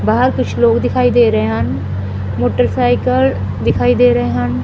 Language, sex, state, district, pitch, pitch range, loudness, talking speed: Punjabi, female, Punjab, Fazilka, 115 Hz, 95-125 Hz, -14 LUFS, 155 wpm